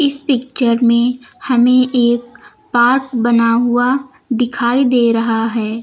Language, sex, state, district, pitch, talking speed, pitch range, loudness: Hindi, female, Uttar Pradesh, Lucknow, 245 Hz, 125 wpm, 235-260 Hz, -14 LUFS